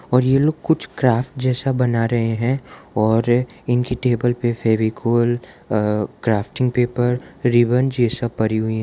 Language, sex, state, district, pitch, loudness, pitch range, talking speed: Hindi, male, Gujarat, Valsad, 120 Hz, -19 LUFS, 115-125 Hz, 155 wpm